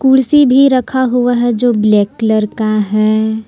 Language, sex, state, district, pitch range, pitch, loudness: Hindi, female, Jharkhand, Palamu, 215-260 Hz, 230 Hz, -12 LUFS